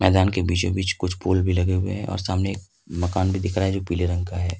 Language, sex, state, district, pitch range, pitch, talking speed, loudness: Hindi, male, Jharkhand, Ranchi, 90-95 Hz, 95 Hz, 285 wpm, -23 LUFS